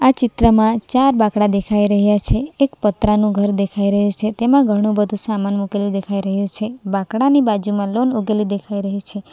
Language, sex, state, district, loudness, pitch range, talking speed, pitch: Gujarati, female, Gujarat, Valsad, -17 LUFS, 200-225 Hz, 175 wpm, 210 Hz